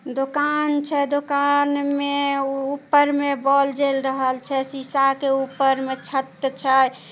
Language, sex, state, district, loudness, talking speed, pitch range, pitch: Maithili, female, Bihar, Samastipur, -21 LUFS, 135 wpm, 270-285 Hz, 275 Hz